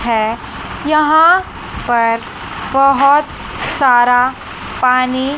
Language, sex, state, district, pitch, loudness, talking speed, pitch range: Hindi, female, Chandigarh, Chandigarh, 260 Hz, -13 LUFS, 65 wpm, 240-290 Hz